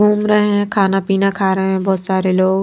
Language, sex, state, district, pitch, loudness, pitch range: Hindi, female, Maharashtra, Washim, 195 Hz, -15 LUFS, 190-205 Hz